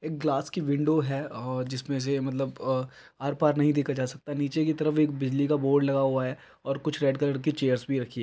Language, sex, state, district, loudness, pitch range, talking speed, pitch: Hindi, male, Chhattisgarh, Bilaspur, -28 LUFS, 135-150 Hz, 265 wpm, 140 Hz